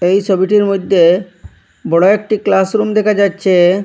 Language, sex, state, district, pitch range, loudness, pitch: Bengali, male, Assam, Hailakandi, 180-205 Hz, -12 LUFS, 195 Hz